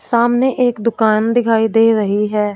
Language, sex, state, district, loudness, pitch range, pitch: Hindi, female, Punjab, Fazilka, -14 LUFS, 215-240 Hz, 225 Hz